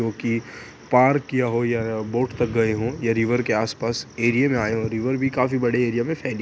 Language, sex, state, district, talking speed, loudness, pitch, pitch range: Hindi, male, Bihar, Purnia, 250 wpm, -22 LUFS, 120 Hz, 115-125 Hz